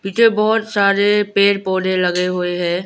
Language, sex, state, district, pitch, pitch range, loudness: Hindi, female, Arunachal Pradesh, Lower Dibang Valley, 200 Hz, 180-210 Hz, -16 LUFS